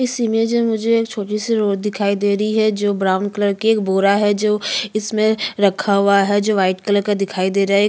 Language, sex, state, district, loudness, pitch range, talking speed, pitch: Hindi, female, Chhattisgarh, Jashpur, -17 LUFS, 200-220 Hz, 215 wpm, 205 Hz